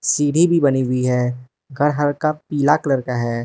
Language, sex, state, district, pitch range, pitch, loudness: Hindi, male, Arunachal Pradesh, Lower Dibang Valley, 125-150 Hz, 140 Hz, -18 LUFS